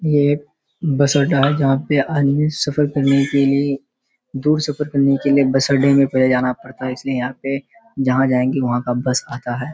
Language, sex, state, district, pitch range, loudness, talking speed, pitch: Hindi, male, Bihar, Kishanganj, 130-145 Hz, -18 LUFS, 210 wpm, 140 Hz